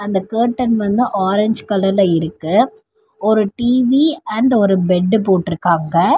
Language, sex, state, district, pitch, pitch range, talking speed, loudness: Tamil, female, Tamil Nadu, Chennai, 210 Hz, 190-240 Hz, 115 wpm, -15 LUFS